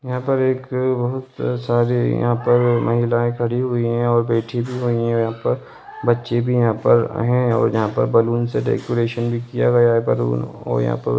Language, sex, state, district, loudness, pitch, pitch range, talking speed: Hindi, male, Bihar, Lakhisarai, -19 LUFS, 120 Hz, 115-120 Hz, 210 wpm